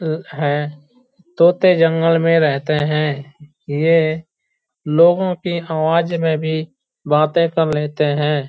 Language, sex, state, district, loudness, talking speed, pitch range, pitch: Hindi, male, Uttar Pradesh, Hamirpur, -17 LUFS, 120 wpm, 150-170 Hz, 160 Hz